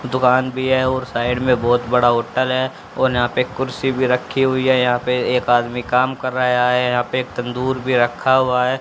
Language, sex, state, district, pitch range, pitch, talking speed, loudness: Hindi, female, Haryana, Jhajjar, 125-130 Hz, 125 Hz, 230 wpm, -18 LUFS